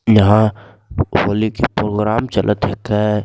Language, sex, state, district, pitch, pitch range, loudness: Angika, male, Bihar, Begusarai, 105 Hz, 105-110 Hz, -16 LUFS